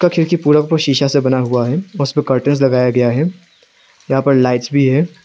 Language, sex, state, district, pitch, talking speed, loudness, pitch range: Hindi, male, Arunachal Pradesh, Lower Dibang Valley, 140 Hz, 215 wpm, -14 LUFS, 130-160 Hz